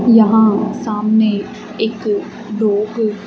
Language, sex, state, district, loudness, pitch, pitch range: Hindi, female, Haryana, Charkhi Dadri, -15 LUFS, 215 Hz, 210-220 Hz